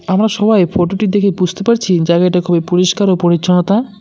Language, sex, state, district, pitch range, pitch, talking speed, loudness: Bengali, male, West Bengal, Cooch Behar, 175-205 Hz, 185 Hz, 180 wpm, -13 LUFS